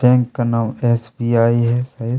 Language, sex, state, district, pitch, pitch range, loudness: Hindi, male, Chhattisgarh, Kabirdham, 120 Hz, 115-125 Hz, -18 LUFS